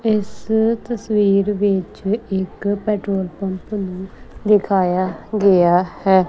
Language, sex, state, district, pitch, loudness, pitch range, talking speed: Punjabi, female, Punjab, Kapurthala, 200 Hz, -19 LUFS, 190-210 Hz, 95 wpm